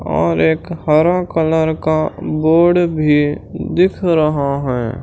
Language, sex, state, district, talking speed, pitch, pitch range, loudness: Hindi, male, Chhattisgarh, Raipur, 120 wpm, 155 Hz, 140-165 Hz, -15 LUFS